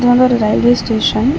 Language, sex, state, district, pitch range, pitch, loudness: Tamil, female, Tamil Nadu, Chennai, 220-250 Hz, 245 Hz, -13 LUFS